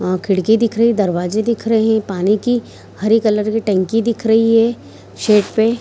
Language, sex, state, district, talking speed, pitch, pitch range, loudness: Hindi, female, Bihar, Kishanganj, 215 wpm, 220 Hz, 205-230 Hz, -15 LUFS